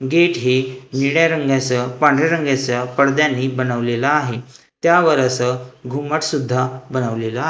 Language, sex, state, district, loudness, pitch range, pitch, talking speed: Marathi, male, Maharashtra, Gondia, -18 LUFS, 125-150 Hz, 130 Hz, 120 wpm